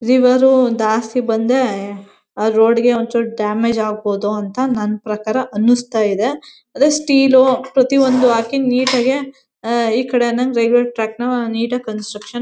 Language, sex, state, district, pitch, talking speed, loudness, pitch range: Kannada, female, Karnataka, Mysore, 235 Hz, 160 wpm, -16 LUFS, 220-255 Hz